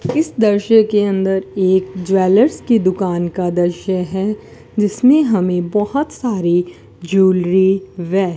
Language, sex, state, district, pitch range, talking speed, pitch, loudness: Hindi, female, Rajasthan, Bikaner, 185-210 Hz, 130 wpm, 190 Hz, -16 LUFS